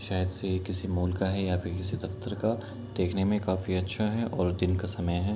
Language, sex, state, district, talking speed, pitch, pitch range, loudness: Hindi, male, Bihar, Kishanganj, 255 wpm, 95 Hz, 90-105 Hz, -30 LUFS